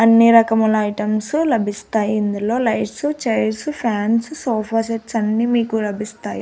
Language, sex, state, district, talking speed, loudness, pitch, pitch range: Telugu, female, Andhra Pradesh, Annamaya, 120 wpm, -18 LUFS, 225 Hz, 215-235 Hz